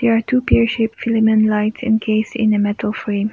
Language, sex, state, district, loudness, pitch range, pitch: English, female, Nagaland, Kohima, -17 LUFS, 215-230 Hz, 220 Hz